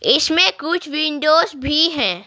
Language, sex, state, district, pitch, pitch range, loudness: Hindi, female, Bihar, Patna, 305 Hz, 285-330 Hz, -16 LUFS